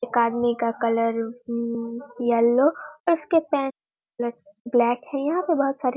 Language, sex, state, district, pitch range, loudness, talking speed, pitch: Hindi, female, Bihar, Muzaffarpur, 235-290 Hz, -24 LUFS, 170 wpm, 245 Hz